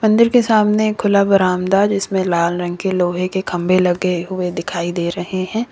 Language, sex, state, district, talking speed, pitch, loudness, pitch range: Hindi, female, Uttar Pradesh, Lalitpur, 210 wpm, 185 Hz, -17 LUFS, 180-205 Hz